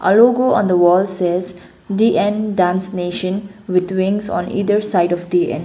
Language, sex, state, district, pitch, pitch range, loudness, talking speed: English, female, Sikkim, Gangtok, 185 Hz, 180-205 Hz, -17 LUFS, 160 wpm